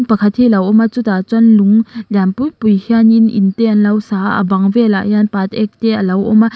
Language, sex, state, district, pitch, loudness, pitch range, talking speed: Mizo, female, Mizoram, Aizawl, 215 Hz, -12 LUFS, 200-225 Hz, 245 wpm